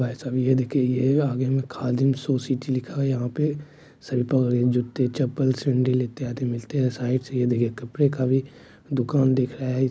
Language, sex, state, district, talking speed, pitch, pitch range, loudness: Hindi, male, Bihar, Supaul, 195 wpm, 130 Hz, 125-135 Hz, -24 LUFS